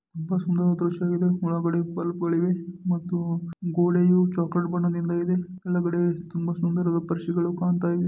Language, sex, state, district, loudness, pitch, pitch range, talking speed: Kannada, male, Karnataka, Dharwad, -25 LUFS, 175 Hz, 170-180 Hz, 135 wpm